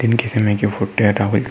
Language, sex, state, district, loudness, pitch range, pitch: Hindi, male, Uttar Pradesh, Muzaffarnagar, -17 LUFS, 100-115 Hz, 105 Hz